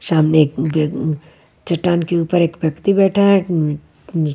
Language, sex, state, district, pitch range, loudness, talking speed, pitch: Hindi, female, Maharashtra, Washim, 155-175 Hz, -17 LUFS, 180 wpm, 160 Hz